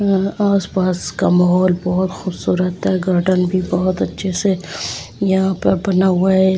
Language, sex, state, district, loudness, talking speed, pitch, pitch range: Hindi, female, Delhi, New Delhi, -17 LUFS, 145 wpm, 185 Hz, 180-190 Hz